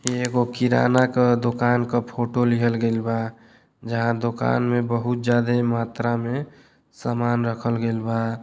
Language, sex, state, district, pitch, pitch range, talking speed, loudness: Bhojpuri, male, Uttar Pradesh, Deoria, 120 Hz, 115-120 Hz, 150 wpm, -22 LUFS